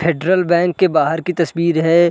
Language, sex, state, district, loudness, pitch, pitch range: Hindi, male, Chhattisgarh, Raigarh, -16 LUFS, 170 Hz, 165-180 Hz